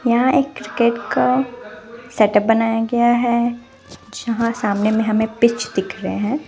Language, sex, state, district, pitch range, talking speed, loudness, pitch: Hindi, female, Punjab, Fazilka, 220-240 Hz, 150 wpm, -18 LUFS, 235 Hz